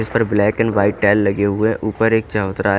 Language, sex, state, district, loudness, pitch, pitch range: Hindi, male, Haryana, Charkhi Dadri, -17 LUFS, 105 Hz, 100-110 Hz